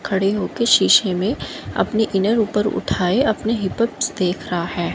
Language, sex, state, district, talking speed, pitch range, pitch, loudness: Hindi, female, Haryana, Jhajjar, 145 wpm, 185-220 Hz, 205 Hz, -19 LUFS